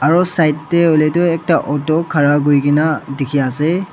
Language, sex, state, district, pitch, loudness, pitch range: Nagamese, male, Nagaland, Dimapur, 155 Hz, -15 LUFS, 145-165 Hz